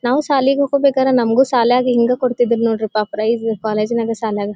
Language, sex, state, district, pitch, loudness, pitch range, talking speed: Kannada, female, Karnataka, Dharwad, 235 Hz, -16 LUFS, 220-260 Hz, 155 wpm